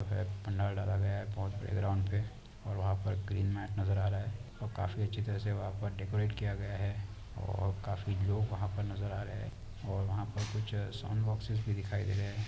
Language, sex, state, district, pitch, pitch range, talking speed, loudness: Hindi, male, Chhattisgarh, Sarguja, 100 Hz, 100-105 Hz, 220 wpm, -36 LUFS